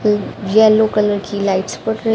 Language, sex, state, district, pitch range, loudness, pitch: Hindi, female, Haryana, Rohtak, 205-220 Hz, -16 LUFS, 210 Hz